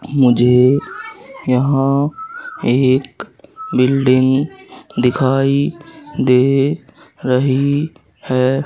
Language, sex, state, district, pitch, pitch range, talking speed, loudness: Hindi, male, Madhya Pradesh, Katni, 135 Hz, 130-150 Hz, 55 wpm, -15 LUFS